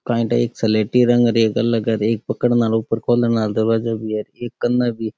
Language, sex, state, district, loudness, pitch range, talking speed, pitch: Rajasthani, male, Rajasthan, Nagaur, -18 LUFS, 110-120 Hz, 160 wpm, 115 Hz